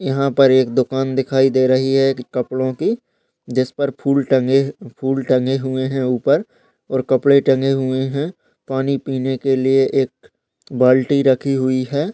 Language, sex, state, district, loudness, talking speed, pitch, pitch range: Hindi, male, Uttar Pradesh, Jyotiba Phule Nagar, -17 LUFS, 160 wpm, 135 Hz, 130-135 Hz